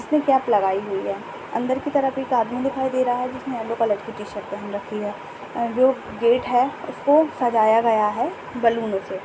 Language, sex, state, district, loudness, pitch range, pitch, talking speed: Hindi, male, Maharashtra, Nagpur, -22 LUFS, 210-260 Hz, 235 Hz, 200 wpm